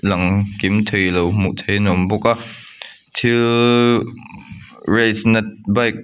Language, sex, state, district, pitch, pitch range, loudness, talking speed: Mizo, male, Mizoram, Aizawl, 105 Hz, 100-115 Hz, -16 LUFS, 150 wpm